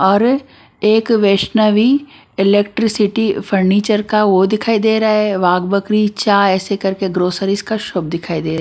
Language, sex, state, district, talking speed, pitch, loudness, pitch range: Hindi, female, Maharashtra, Washim, 145 wpm, 205 Hz, -15 LUFS, 195-220 Hz